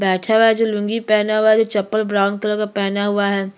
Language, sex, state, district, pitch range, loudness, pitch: Hindi, female, Chhattisgarh, Sukma, 200-215 Hz, -17 LUFS, 210 Hz